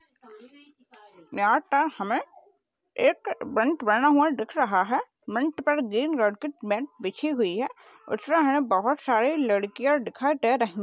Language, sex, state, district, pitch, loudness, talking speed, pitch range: Hindi, female, Maharashtra, Dhule, 275 Hz, -25 LUFS, 140 wpm, 220-300 Hz